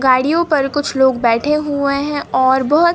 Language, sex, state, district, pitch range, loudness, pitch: Hindi, male, Madhya Pradesh, Bhopal, 260-295 Hz, -15 LUFS, 280 Hz